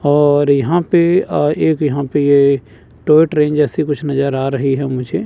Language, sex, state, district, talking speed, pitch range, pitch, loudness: Hindi, male, Chandigarh, Chandigarh, 195 wpm, 140-150 Hz, 145 Hz, -14 LUFS